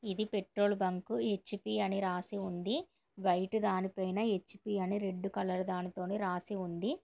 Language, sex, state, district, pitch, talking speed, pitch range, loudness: Telugu, female, Andhra Pradesh, Srikakulam, 195 Hz, 145 wpm, 185-210 Hz, -36 LUFS